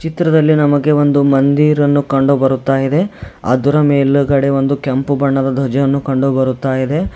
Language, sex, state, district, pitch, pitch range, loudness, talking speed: Kannada, male, Karnataka, Bidar, 140 Hz, 135-145 Hz, -13 LUFS, 115 wpm